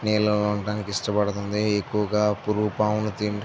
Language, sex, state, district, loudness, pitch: Telugu, male, Andhra Pradesh, Visakhapatnam, -24 LUFS, 105 Hz